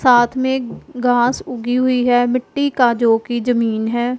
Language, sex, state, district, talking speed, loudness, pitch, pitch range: Hindi, female, Punjab, Pathankot, 155 wpm, -17 LUFS, 245 Hz, 240-255 Hz